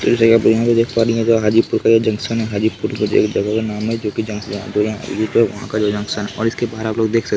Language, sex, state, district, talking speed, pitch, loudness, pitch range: Hindi, male, Bihar, Kishanganj, 165 wpm, 110 Hz, -17 LUFS, 105-115 Hz